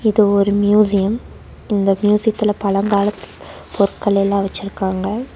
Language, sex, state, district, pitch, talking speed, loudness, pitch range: Tamil, female, Tamil Nadu, Nilgiris, 205 Hz, 110 wpm, -17 LUFS, 200-210 Hz